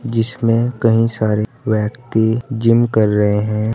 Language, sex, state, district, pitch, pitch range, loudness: Hindi, male, Uttar Pradesh, Saharanpur, 115 Hz, 110-115 Hz, -16 LUFS